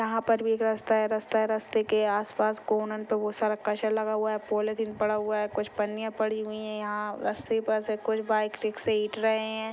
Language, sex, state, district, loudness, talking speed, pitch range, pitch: Hindi, female, Maharashtra, Nagpur, -28 LUFS, 230 wpm, 215-220 Hz, 215 Hz